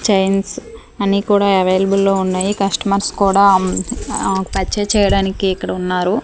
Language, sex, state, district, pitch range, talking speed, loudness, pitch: Telugu, female, Andhra Pradesh, Manyam, 190-200 Hz, 135 wpm, -16 LUFS, 195 Hz